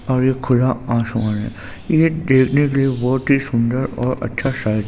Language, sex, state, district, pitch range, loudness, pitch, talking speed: Hindi, male, Maharashtra, Chandrapur, 115-135 Hz, -18 LUFS, 130 Hz, 195 wpm